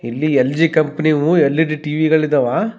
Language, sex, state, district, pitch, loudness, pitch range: Kannada, male, Karnataka, Raichur, 155 Hz, -16 LUFS, 150-160 Hz